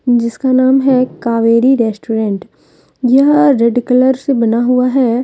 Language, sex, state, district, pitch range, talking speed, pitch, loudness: Hindi, female, Jharkhand, Deoghar, 235-265 Hz, 135 wpm, 250 Hz, -12 LUFS